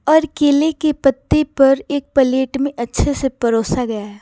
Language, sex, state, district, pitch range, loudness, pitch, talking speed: Hindi, female, Bihar, Patna, 250-290 Hz, -17 LUFS, 275 Hz, 185 wpm